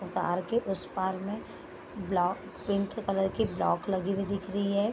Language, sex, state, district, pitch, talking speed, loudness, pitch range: Hindi, female, Bihar, Gopalganj, 195 Hz, 185 wpm, -31 LUFS, 190-200 Hz